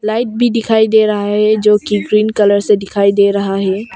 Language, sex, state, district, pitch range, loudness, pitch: Hindi, female, Arunachal Pradesh, Longding, 200-220 Hz, -13 LUFS, 210 Hz